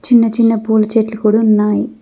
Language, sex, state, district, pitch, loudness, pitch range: Telugu, female, Telangana, Mahabubabad, 220 Hz, -13 LUFS, 215-225 Hz